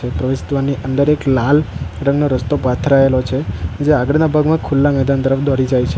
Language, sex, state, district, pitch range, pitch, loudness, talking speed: Gujarati, male, Gujarat, Valsad, 130-145 Hz, 135 Hz, -15 LUFS, 180 wpm